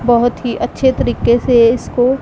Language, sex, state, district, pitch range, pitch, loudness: Hindi, female, Punjab, Pathankot, 235-250 Hz, 245 Hz, -14 LUFS